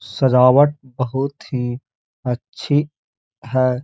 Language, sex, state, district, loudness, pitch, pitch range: Hindi, male, Uttar Pradesh, Hamirpur, -19 LUFS, 130 Hz, 125-140 Hz